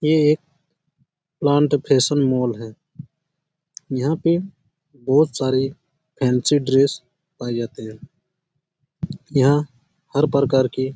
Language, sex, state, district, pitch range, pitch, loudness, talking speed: Hindi, male, Chhattisgarh, Bastar, 130-160 Hz, 145 Hz, -20 LUFS, 110 wpm